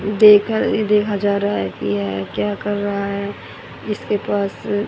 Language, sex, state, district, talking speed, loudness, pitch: Hindi, female, Haryana, Rohtak, 170 wpm, -18 LUFS, 200 Hz